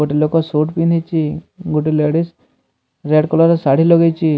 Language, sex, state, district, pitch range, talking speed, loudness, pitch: Odia, male, Odisha, Sambalpur, 150-165 Hz, 150 wpm, -15 LUFS, 155 Hz